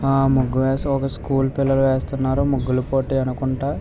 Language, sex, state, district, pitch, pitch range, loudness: Telugu, male, Andhra Pradesh, Visakhapatnam, 135 Hz, 130-135 Hz, -20 LUFS